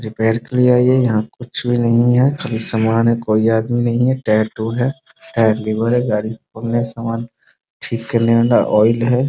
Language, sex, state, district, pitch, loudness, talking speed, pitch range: Hindi, male, Bihar, Muzaffarpur, 115 Hz, -16 LUFS, 205 wpm, 110-120 Hz